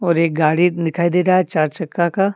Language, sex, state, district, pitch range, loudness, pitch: Hindi, male, Jharkhand, Deoghar, 165-180 Hz, -17 LUFS, 170 Hz